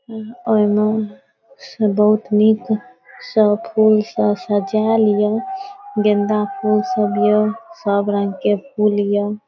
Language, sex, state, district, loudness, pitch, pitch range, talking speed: Maithili, female, Bihar, Saharsa, -17 LUFS, 210 Hz, 205-225 Hz, 120 wpm